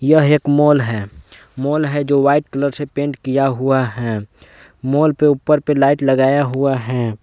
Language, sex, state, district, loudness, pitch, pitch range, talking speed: Hindi, male, Jharkhand, Palamu, -16 LUFS, 135 Hz, 125-145 Hz, 185 wpm